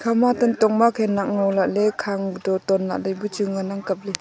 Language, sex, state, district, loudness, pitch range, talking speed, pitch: Wancho, female, Arunachal Pradesh, Longding, -21 LUFS, 195-220 Hz, 215 wpm, 200 Hz